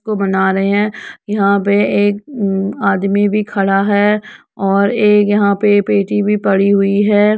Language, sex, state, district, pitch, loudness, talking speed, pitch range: Hindi, female, Uttar Pradesh, Jyotiba Phule Nagar, 205 Hz, -14 LUFS, 180 wpm, 195-210 Hz